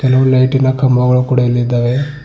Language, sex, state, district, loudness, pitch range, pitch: Kannada, male, Karnataka, Bidar, -12 LUFS, 125-130 Hz, 130 Hz